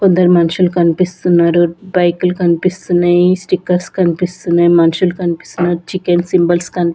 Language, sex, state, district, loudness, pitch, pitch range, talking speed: Telugu, female, Andhra Pradesh, Sri Satya Sai, -13 LUFS, 175 Hz, 175-180 Hz, 105 wpm